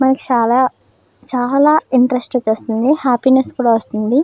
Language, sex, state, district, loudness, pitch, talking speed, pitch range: Telugu, female, Andhra Pradesh, Krishna, -14 LUFS, 255 Hz, 115 wpm, 240-265 Hz